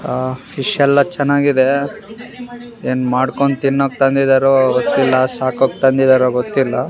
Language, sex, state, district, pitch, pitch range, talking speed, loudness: Kannada, male, Karnataka, Raichur, 135 Hz, 130-140 Hz, 105 wpm, -15 LUFS